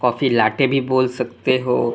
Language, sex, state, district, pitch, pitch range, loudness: Hindi, male, Tripura, West Tripura, 130 Hz, 120-130 Hz, -18 LUFS